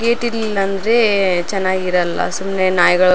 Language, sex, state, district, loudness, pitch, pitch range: Kannada, female, Karnataka, Raichur, -16 LUFS, 195 Hz, 180-215 Hz